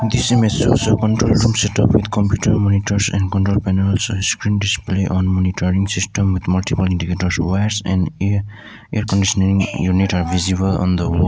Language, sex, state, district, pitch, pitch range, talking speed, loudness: English, male, Sikkim, Gangtok, 100 Hz, 95-105 Hz, 170 wpm, -17 LUFS